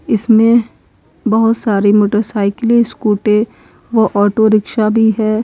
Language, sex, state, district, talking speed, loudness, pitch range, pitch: Hindi, female, Uttar Pradesh, Lalitpur, 110 wpm, -13 LUFS, 210-225 Hz, 220 Hz